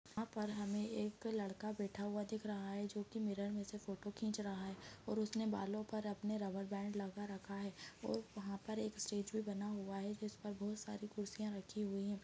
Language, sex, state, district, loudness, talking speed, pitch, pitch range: Hindi, female, Chhattisgarh, Bastar, -45 LUFS, 225 wpm, 205 Hz, 200-215 Hz